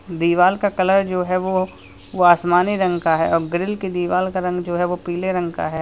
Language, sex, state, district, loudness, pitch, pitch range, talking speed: Hindi, male, Uttar Pradesh, Lalitpur, -19 LUFS, 180 Hz, 175-185 Hz, 260 wpm